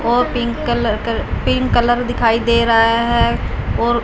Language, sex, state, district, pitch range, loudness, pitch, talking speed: Hindi, female, Punjab, Fazilka, 230-240 Hz, -16 LUFS, 235 Hz, 165 wpm